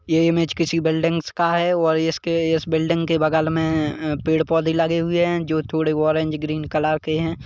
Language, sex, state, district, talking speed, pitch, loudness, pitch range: Hindi, male, Chhattisgarh, Kabirdham, 195 wpm, 160 Hz, -20 LUFS, 155-165 Hz